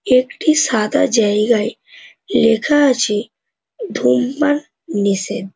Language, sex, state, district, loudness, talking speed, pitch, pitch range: Bengali, male, West Bengal, North 24 Parganas, -16 LUFS, 75 wpm, 235 Hz, 210-290 Hz